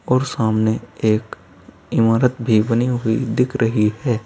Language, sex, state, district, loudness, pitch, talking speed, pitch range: Hindi, male, Uttar Pradesh, Saharanpur, -18 LUFS, 115 Hz, 140 wpm, 110-125 Hz